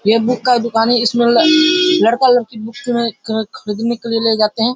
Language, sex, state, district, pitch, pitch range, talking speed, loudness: Hindi, male, Bihar, Darbhanga, 235 Hz, 225-245 Hz, 225 wpm, -14 LUFS